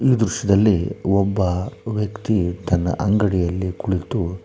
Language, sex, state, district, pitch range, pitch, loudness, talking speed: Kannada, male, Karnataka, Shimoga, 90-105 Hz, 100 Hz, -20 LUFS, 95 wpm